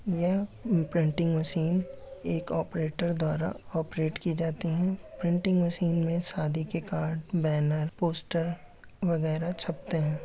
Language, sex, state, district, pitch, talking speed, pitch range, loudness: Hindi, male, Uttar Pradesh, Etah, 165 Hz, 125 wpm, 160-175 Hz, -30 LUFS